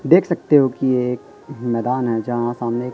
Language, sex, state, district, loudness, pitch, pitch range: Hindi, female, Madhya Pradesh, Katni, -19 LUFS, 125 Hz, 120-140 Hz